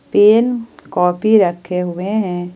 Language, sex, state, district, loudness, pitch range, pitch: Hindi, female, Jharkhand, Ranchi, -15 LUFS, 180-215 Hz, 190 Hz